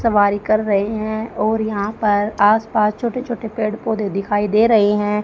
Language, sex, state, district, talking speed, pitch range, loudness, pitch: Hindi, female, Haryana, Charkhi Dadri, 195 wpm, 205-220 Hz, -18 LUFS, 215 Hz